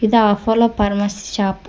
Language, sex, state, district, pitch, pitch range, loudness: Kannada, female, Karnataka, Koppal, 205 Hz, 200-225 Hz, -17 LUFS